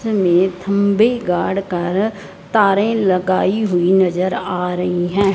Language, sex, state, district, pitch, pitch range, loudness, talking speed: Hindi, female, Punjab, Fazilka, 190 Hz, 180-200 Hz, -17 LUFS, 125 wpm